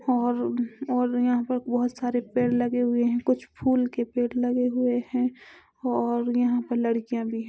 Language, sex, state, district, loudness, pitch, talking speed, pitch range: Hindi, female, Chhattisgarh, Korba, -26 LUFS, 245 Hz, 175 wpm, 240-250 Hz